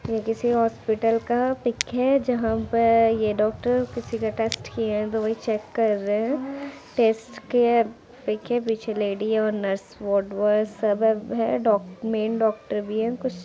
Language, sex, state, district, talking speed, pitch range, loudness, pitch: Hindi, female, Bihar, Muzaffarpur, 170 wpm, 215-235 Hz, -24 LUFS, 225 Hz